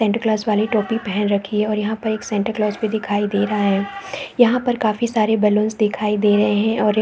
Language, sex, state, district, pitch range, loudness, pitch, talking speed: Hindi, female, Chhattisgarh, Raigarh, 210-220 Hz, -19 LUFS, 215 Hz, 230 wpm